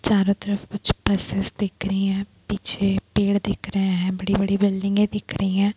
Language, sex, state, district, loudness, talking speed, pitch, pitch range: Hindi, female, Chhattisgarh, Bilaspur, -23 LUFS, 185 wpm, 200 Hz, 195-205 Hz